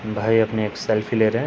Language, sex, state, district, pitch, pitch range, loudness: Hindi, male, Uttar Pradesh, Hamirpur, 110 Hz, 110-115 Hz, -21 LUFS